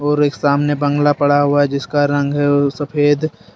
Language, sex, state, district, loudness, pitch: Hindi, male, Jharkhand, Deoghar, -16 LUFS, 145 Hz